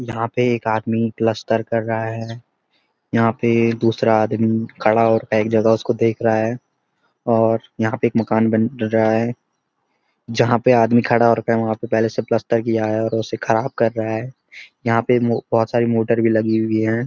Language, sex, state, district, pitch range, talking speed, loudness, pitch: Hindi, male, Uttarakhand, Uttarkashi, 110-115 Hz, 195 wpm, -18 LUFS, 115 Hz